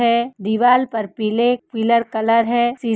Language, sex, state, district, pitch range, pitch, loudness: Hindi, female, Uttar Pradesh, Etah, 220-240 Hz, 230 Hz, -18 LUFS